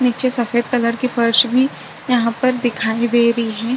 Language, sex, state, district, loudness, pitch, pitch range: Hindi, female, Uttar Pradesh, Budaun, -17 LUFS, 240 Hz, 230-250 Hz